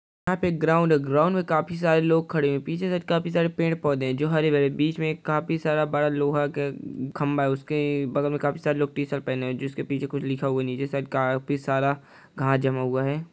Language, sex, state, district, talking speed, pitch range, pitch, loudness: Hindi, male, Uttar Pradesh, Hamirpur, 250 wpm, 140-160 Hz, 145 Hz, -25 LUFS